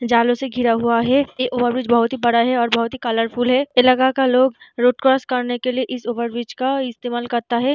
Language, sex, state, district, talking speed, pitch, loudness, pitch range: Hindi, female, Bihar, Vaishali, 250 wpm, 245 Hz, -18 LUFS, 235-255 Hz